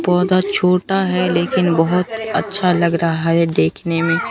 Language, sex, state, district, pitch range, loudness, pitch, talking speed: Hindi, female, Bihar, Katihar, 170-180 Hz, -16 LUFS, 175 Hz, 155 wpm